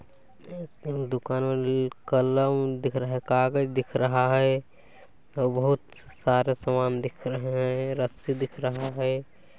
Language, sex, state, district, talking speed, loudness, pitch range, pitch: Hindi, male, Chhattisgarh, Balrampur, 145 wpm, -27 LUFS, 130-135 Hz, 130 Hz